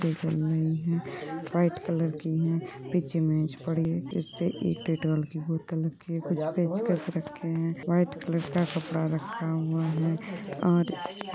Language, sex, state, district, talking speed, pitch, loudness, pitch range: Hindi, female, Uttar Pradesh, Gorakhpur, 90 wpm, 165 Hz, -29 LUFS, 160-175 Hz